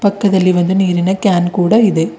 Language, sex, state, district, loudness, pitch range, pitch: Kannada, female, Karnataka, Bidar, -13 LUFS, 175-200 Hz, 185 Hz